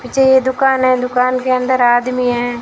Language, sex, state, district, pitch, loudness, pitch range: Hindi, female, Rajasthan, Jaisalmer, 255 Hz, -14 LUFS, 250-260 Hz